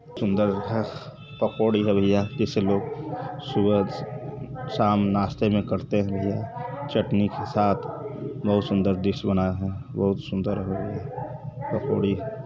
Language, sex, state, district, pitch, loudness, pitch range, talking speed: Hindi, male, Uttar Pradesh, Varanasi, 105 Hz, -25 LUFS, 100-135 Hz, 120 wpm